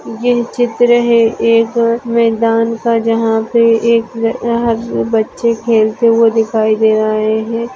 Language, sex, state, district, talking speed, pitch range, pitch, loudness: Hindi, female, Maharashtra, Aurangabad, 130 wpm, 225-235 Hz, 230 Hz, -13 LUFS